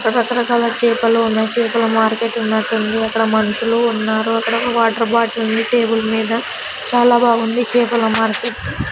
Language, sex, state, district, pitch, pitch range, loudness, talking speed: Telugu, female, Andhra Pradesh, Sri Satya Sai, 230 Hz, 225-235 Hz, -16 LUFS, 150 wpm